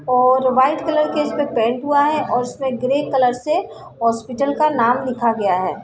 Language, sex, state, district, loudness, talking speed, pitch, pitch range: Hindi, female, Bihar, Sitamarhi, -18 LUFS, 205 wpm, 260 Hz, 245-290 Hz